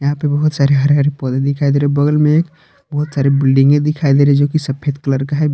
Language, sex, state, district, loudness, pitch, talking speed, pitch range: Hindi, male, Jharkhand, Palamu, -14 LUFS, 145 Hz, 280 wpm, 140-150 Hz